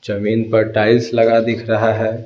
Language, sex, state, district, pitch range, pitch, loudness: Hindi, male, Bihar, Patna, 110-115 Hz, 115 Hz, -15 LUFS